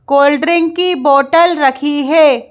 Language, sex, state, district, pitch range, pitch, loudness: Hindi, female, Madhya Pradesh, Bhopal, 280-335 Hz, 295 Hz, -11 LUFS